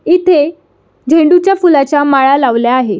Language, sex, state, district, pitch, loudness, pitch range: Marathi, female, Maharashtra, Solapur, 290 Hz, -10 LUFS, 270-345 Hz